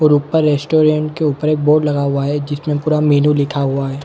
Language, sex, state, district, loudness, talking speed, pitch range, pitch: Hindi, male, Chhattisgarh, Bilaspur, -15 LUFS, 220 wpm, 145-155 Hz, 150 Hz